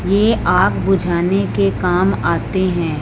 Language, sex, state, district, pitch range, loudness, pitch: Hindi, male, Punjab, Fazilka, 160-190 Hz, -16 LUFS, 180 Hz